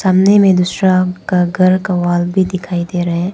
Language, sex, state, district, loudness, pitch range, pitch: Hindi, female, Arunachal Pradesh, Papum Pare, -13 LUFS, 175-185 Hz, 185 Hz